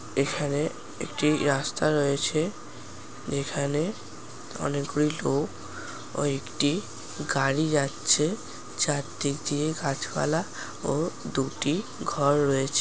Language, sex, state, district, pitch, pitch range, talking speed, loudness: Bengali, male, West Bengal, Paschim Medinipur, 145 Hz, 140-150 Hz, 85 wpm, -27 LUFS